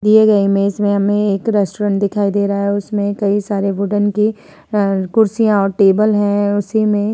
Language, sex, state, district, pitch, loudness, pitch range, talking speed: Hindi, female, Uttar Pradesh, Muzaffarnagar, 205 Hz, -15 LUFS, 200-210 Hz, 200 wpm